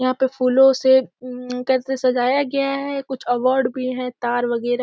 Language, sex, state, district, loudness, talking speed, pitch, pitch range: Hindi, female, Bihar, Jamui, -19 LUFS, 225 wpm, 255 Hz, 250-265 Hz